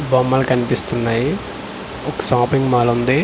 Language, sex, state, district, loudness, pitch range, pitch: Telugu, male, Andhra Pradesh, Manyam, -18 LUFS, 120-130 Hz, 125 Hz